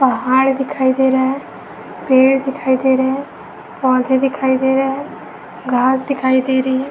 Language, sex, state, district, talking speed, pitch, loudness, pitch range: Hindi, female, Uttar Pradesh, Etah, 175 wpm, 265 Hz, -16 LUFS, 260-270 Hz